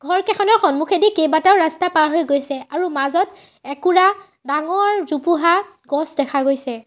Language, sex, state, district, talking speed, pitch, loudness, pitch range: Assamese, female, Assam, Sonitpur, 140 wpm, 335 Hz, -17 LUFS, 285-380 Hz